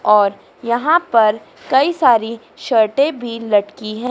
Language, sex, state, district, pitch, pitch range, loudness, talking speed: Hindi, female, Madhya Pradesh, Dhar, 230 Hz, 215-265 Hz, -16 LUFS, 130 wpm